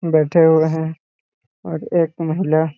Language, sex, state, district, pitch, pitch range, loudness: Hindi, male, Jharkhand, Jamtara, 160 Hz, 160-165 Hz, -17 LUFS